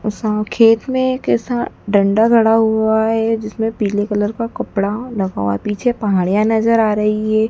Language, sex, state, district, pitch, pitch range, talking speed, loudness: Hindi, female, Madhya Pradesh, Dhar, 220 Hz, 210-225 Hz, 175 wpm, -16 LUFS